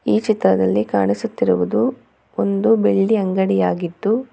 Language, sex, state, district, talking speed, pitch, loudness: Kannada, female, Karnataka, Bangalore, 85 wpm, 110 Hz, -18 LUFS